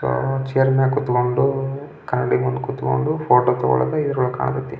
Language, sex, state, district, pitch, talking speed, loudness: Kannada, male, Karnataka, Belgaum, 125 Hz, 140 wpm, -20 LUFS